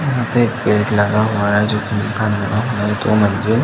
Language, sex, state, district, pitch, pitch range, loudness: Hindi, male, Uttar Pradesh, Jalaun, 105 Hz, 105-110 Hz, -16 LUFS